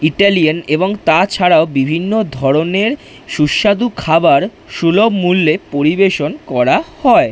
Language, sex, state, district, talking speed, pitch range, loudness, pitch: Bengali, male, West Bengal, Dakshin Dinajpur, 105 wpm, 155-210 Hz, -13 LUFS, 180 Hz